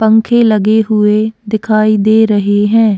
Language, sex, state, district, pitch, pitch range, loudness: Hindi, female, Goa, North and South Goa, 215 Hz, 210-220 Hz, -11 LUFS